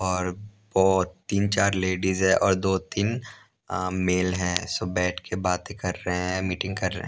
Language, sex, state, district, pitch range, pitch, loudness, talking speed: Hindi, male, Punjab, Pathankot, 90-100 Hz, 95 Hz, -25 LUFS, 180 wpm